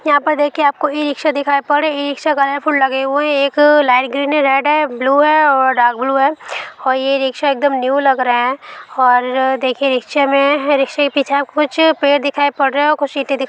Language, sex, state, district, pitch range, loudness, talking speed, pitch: Hindi, female, Bihar, Jamui, 270-295 Hz, -14 LUFS, 225 wpm, 280 Hz